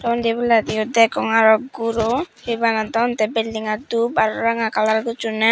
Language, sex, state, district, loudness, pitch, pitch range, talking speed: Chakma, female, Tripura, Dhalai, -19 LUFS, 230 Hz, 220-235 Hz, 175 wpm